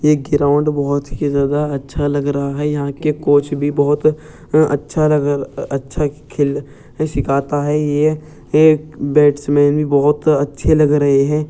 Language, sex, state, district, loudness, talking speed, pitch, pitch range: Hindi, male, Uttar Pradesh, Jyotiba Phule Nagar, -16 LUFS, 160 wpm, 145 Hz, 140-150 Hz